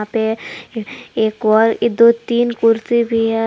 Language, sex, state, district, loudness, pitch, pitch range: Hindi, female, Jharkhand, Palamu, -15 LUFS, 225 Hz, 220-235 Hz